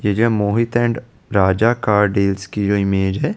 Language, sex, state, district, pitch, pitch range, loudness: Hindi, male, Chandigarh, Chandigarh, 105 Hz, 100-115 Hz, -17 LUFS